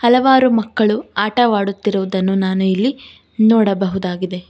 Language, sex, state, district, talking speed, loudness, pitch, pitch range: Kannada, female, Karnataka, Bangalore, 80 wpm, -16 LUFS, 205 Hz, 190-230 Hz